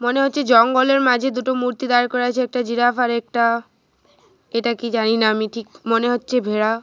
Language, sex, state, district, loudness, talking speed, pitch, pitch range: Bengali, female, Jharkhand, Jamtara, -19 LUFS, 185 wpm, 245 Hz, 230-250 Hz